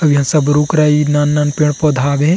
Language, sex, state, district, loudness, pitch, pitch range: Chhattisgarhi, male, Chhattisgarh, Rajnandgaon, -13 LUFS, 150 Hz, 145-150 Hz